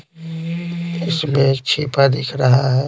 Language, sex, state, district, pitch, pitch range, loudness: Hindi, male, Bihar, Patna, 145 Hz, 135-165 Hz, -18 LUFS